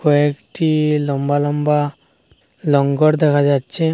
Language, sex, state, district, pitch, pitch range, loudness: Bengali, male, Assam, Hailakandi, 145 Hz, 145-155 Hz, -17 LUFS